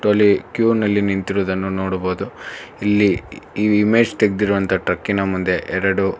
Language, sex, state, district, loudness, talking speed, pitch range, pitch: Kannada, male, Karnataka, Bangalore, -18 LUFS, 115 wpm, 95-105 Hz, 100 Hz